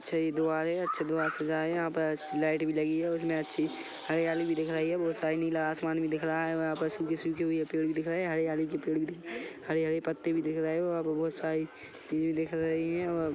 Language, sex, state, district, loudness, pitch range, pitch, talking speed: Hindi, male, Chhattisgarh, Rajnandgaon, -32 LUFS, 160-165 Hz, 160 Hz, 280 wpm